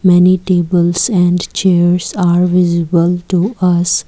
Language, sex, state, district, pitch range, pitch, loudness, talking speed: English, female, Assam, Kamrup Metropolitan, 175-180 Hz, 175 Hz, -12 LUFS, 115 wpm